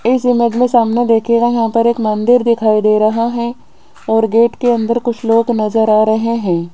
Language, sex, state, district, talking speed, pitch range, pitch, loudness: Hindi, female, Rajasthan, Jaipur, 205 wpm, 220-235 Hz, 230 Hz, -13 LUFS